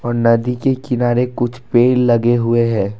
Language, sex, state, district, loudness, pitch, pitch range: Hindi, male, Assam, Kamrup Metropolitan, -15 LUFS, 120 Hz, 115-125 Hz